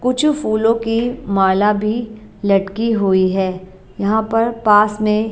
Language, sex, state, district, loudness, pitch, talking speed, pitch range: Hindi, female, Bihar, Katihar, -16 LUFS, 215 Hz, 135 wpm, 195-225 Hz